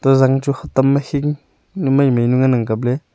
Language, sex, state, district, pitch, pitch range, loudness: Wancho, male, Arunachal Pradesh, Longding, 135 Hz, 125-140 Hz, -16 LUFS